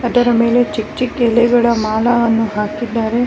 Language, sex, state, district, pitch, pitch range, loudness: Kannada, female, Karnataka, Bellary, 235 Hz, 225-240 Hz, -15 LUFS